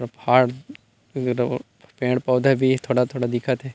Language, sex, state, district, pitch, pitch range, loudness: Chhattisgarhi, male, Chhattisgarh, Rajnandgaon, 125 Hz, 120-130 Hz, -21 LUFS